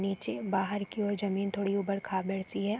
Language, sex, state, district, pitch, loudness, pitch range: Hindi, female, Uttar Pradesh, Deoria, 200 Hz, -33 LUFS, 195-205 Hz